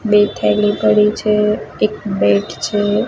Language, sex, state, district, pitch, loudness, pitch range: Gujarati, female, Gujarat, Gandhinagar, 210 Hz, -15 LUFS, 205-210 Hz